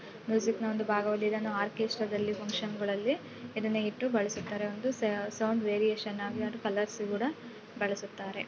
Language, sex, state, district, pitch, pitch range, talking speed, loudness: Kannada, female, Karnataka, Bellary, 215 Hz, 205-220 Hz, 150 wpm, -33 LUFS